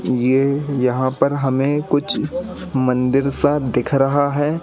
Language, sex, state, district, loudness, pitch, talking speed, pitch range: Hindi, male, Madhya Pradesh, Katni, -18 LUFS, 140 Hz, 130 wpm, 130-145 Hz